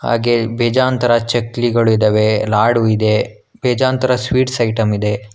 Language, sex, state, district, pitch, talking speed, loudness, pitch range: Kannada, male, Karnataka, Bangalore, 115 Hz, 135 wpm, -15 LUFS, 110-125 Hz